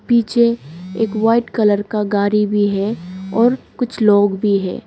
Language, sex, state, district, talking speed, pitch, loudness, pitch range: Hindi, female, Arunachal Pradesh, Lower Dibang Valley, 160 wpm, 210 Hz, -16 LUFS, 200-230 Hz